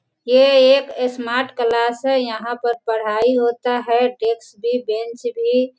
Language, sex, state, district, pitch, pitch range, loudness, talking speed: Hindi, female, Bihar, Sitamarhi, 240 Hz, 235-250 Hz, -18 LUFS, 155 wpm